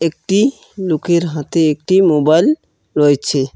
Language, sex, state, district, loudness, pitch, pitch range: Bengali, male, West Bengal, Cooch Behar, -15 LUFS, 165 Hz, 150-185 Hz